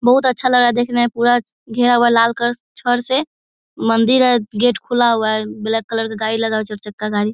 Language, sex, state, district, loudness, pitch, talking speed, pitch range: Hindi, female, Bihar, Muzaffarpur, -16 LUFS, 235 Hz, 255 wpm, 220-245 Hz